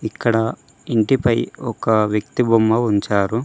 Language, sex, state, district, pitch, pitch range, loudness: Telugu, male, Telangana, Mahabubabad, 115 Hz, 105-115 Hz, -18 LUFS